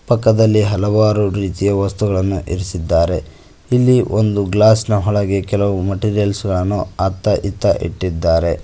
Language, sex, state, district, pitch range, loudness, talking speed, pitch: Kannada, male, Karnataka, Koppal, 95-105 Hz, -16 LUFS, 110 wpm, 100 Hz